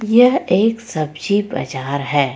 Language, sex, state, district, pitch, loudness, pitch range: Hindi, female, Jharkhand, Ranchi, 180 Hz, -17 LUFS, 140-220 Hz